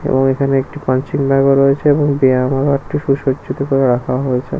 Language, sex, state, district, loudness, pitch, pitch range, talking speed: Bengali, male, West Bengal, Kolkata, -15 LUFS, 135 Hz, 130-140 Hz, 155 wpm